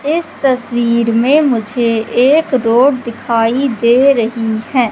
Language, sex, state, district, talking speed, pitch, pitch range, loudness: Hindi, female, Madhya Pradesh, Katni, 120 wpm, 240 Hz, 230-270 Hz, -13 LUFS